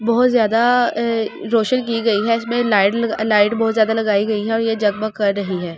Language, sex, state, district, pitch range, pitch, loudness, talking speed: Hindi, male, Delhi, New Delhi, 210-230 Hz, 225 Hz, -17 LUFS, 220 wpm